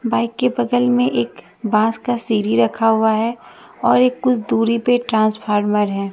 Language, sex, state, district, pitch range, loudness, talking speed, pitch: Hindi, female, Bihar, West Champaran, 215-245 Hz, -17 LUFS, 175 wpm, 225 Hz